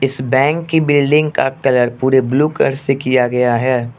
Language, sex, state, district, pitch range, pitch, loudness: Hindi, male, Arunachal Pradesh, Lower Dibang Valley, 125-145 Hz, 135 Hz, -14 LUFS